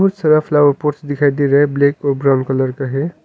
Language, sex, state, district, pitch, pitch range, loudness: Hindi, male, Arunachal Pradesh, Longding, 145 Hz, 140-150 Hz, -15 LUFS